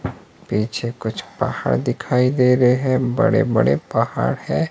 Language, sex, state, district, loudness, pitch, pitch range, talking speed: Hindi, male, Himachal Pradesh, Shimla, -19 LUFS, 125 Hz, 120-130 Hz, 140 wpm